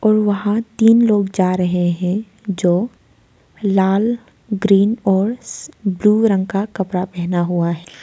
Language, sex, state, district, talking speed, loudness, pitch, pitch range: Hindi, female, Arunachal Pradesh, Lower Dibang Valley, 125 wpm, -17 LUFS, 195 Hz, 180-215 Hz